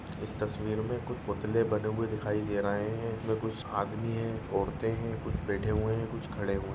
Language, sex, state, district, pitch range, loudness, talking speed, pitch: Bhojpuri, male, Uttar Pradesh, Gorakhpur, 105-115 Hz, -33 LUFS, 220 wpm, 110 Hz